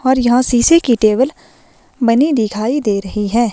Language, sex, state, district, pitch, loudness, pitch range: Hindi, female, Himachal Pradesh, Shimla, 240 Hz, -14 LUFS, 215-260 Hz